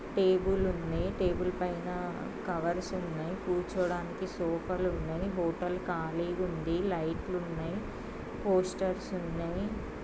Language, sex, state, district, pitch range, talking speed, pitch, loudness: Telugu, female, Andhra Pradesh, Srikakulam, 170-185 Hz, 100 wpm, 180 Hz, -33 LUFS